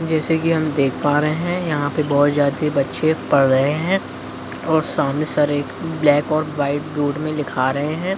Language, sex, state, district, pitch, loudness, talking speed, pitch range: Hindi, male, Bihar, Jahanabad, 150 Hz, -19 LUFS, 200 wpm, 140-155 Hz